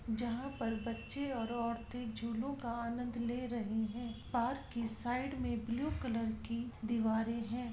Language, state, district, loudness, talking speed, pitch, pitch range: Santali, Jharkhand, Sahebganj, -39 LUFS, 155 wpm, 235 Hz, 230-245 Hz